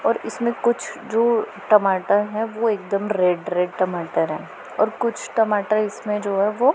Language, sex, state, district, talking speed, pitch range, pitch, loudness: Hindi, female, Punjab, Pathankot, 170 wpm, 200-225 Hz, 210 Hz, -21 LUFS